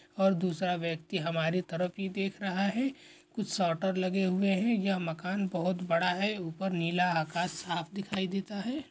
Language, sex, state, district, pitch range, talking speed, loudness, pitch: Hindi, male, Chhattisgarh, Korba, 175-195 Hz, 175 wpm, -31 LUFS, 185 Hz